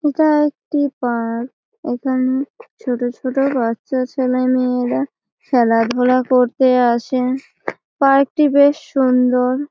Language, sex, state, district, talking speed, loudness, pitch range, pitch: Bengali, female, West Bengal, Malda, 100 wpm, -17 LUFS, 245-280 Hz, 255 Hz